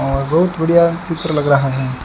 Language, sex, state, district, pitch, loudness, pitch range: Hindi, male, Rajasthan, Bikaner, 155 Hz, -15 LUFS, 135-170 Hz